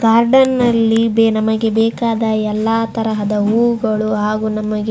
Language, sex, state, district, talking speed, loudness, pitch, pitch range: Kannada, female, Karnataka, Raichur, 110 wpm, -15 LUFS, 225 Hz, 215-230 Hz